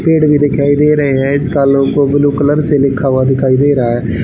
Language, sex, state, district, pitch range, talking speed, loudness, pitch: Hindi, male, Haryana, Rohtak, 135-145 Hz, 240 wpm, -11 LUFS, 140 Hz